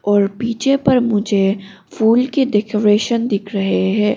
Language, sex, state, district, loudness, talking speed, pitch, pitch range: Hindi, female, Arunachal Pradesh, Longding, -16 LUFS, 145 wpm, 210 Hz, 200-235 Hz